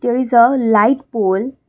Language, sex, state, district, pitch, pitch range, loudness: English, female, Assam, Kamrup Metropolitan, 240 Hz, 215-255 Hz, -14 LUFS